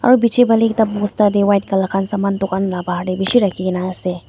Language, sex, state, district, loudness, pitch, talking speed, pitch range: Nagamese, female, Nagaland, Dimapur, -16 LUFS, 195 Hz, 265 wpm, 185-220 Hz